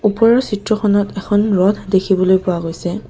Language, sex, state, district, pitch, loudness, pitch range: Assamese, female, Assam, Kamrup Metropolitan, 200 Hz, -16 LUFS, 190-210 Hz